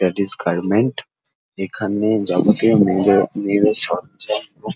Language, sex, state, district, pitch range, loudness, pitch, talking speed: Bengali, male, West Bengal, Jhargram, 95-105 Hz, -17 LUFS, 100 Hz, 115 wpm